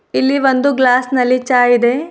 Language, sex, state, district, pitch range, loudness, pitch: Kannada, female, Karnataka, Bidar, 250-270 Hz, -13 LUFS, 255 Hz